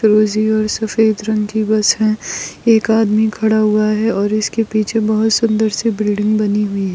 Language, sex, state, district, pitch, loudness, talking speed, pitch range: Hindi, female, Goa, North and South Goa, 215 Hz, -15 LUFS, 180 wpm, 215-220 Hz